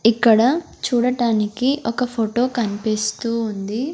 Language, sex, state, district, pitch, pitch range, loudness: Telugu, female, Andhra Pradesh, Sri Satya Sai, 230 Hz, 220-245 Hz, -20 LUFS